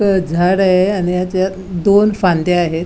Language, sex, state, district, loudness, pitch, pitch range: Marathi, female, Goa, North and South Goa, -14 LUFS, 185 Hz, 175-190 Hz